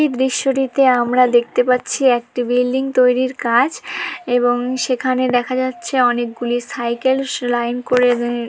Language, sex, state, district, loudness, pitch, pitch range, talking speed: Bengali, female, West Bengal, Dakshin Dinajpur, -17 LUFS, 250 Hz, 245-260 Hz, 115 wpm